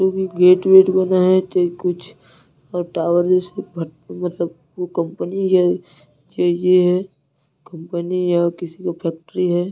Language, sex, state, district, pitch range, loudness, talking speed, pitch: Hindi, male, Chhattisgarh, Narayanpur, 170-185 Hz, -18 LUFS, 150 wpm, 180 Hz